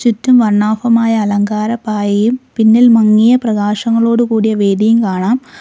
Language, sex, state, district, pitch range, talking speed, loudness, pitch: Malayalam, female, Kerala, Kollam, 210-235 Hz, 95 wpm, -12 LUFS, 225 Hz